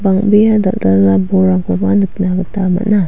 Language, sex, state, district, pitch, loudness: Garo, female, Meghalaya, West Garo Hills, 185 Hz, -12 LUFS